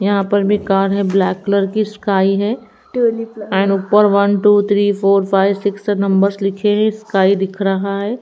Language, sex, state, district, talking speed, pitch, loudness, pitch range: Hindi, female, Haryana, Rohtak, 175 wpm, 200 Hz, -15 LUFS, 195-210 Hz